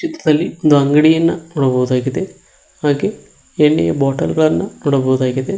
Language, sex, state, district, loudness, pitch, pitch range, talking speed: Kannada, male, Karnataka, Koppal, -15 LUFS, 150 Hz, 135-170 Hz, 95 wpm